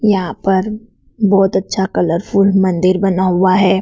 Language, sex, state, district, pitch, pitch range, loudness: Hindi, female, Madhya Pradesh, Dhar, 190 Hz, 185-195 Hz, -14 LUFS